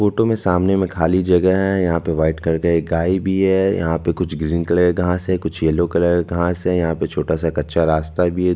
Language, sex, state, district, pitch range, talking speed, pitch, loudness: Hindi, male, Chhattisgarh, Bastar, 80-90 Hz, 265 wpm, 85 Hz, -18 LUFS